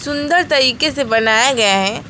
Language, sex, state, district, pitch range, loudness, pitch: Hindi, female, West Bengal, Alipurduar, 220-290 Hz, -13 LUFS, 270 Hz